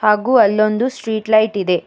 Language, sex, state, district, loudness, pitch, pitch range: Kannada, female, Karnataka, Bangalore, -15 LUFS, 215 Hz, 210-225 Hz